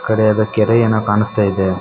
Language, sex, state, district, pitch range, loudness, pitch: Kannada, female, Karnataka, Chamarajanagar, 105-110 Hz, -15 LUFS, 110 Hz